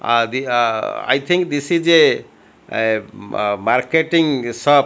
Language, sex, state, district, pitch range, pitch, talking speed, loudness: English, male, Odisha, Malkangiri, 115-160 Hz, 130 Hz, 135 wpm, -17 LUFS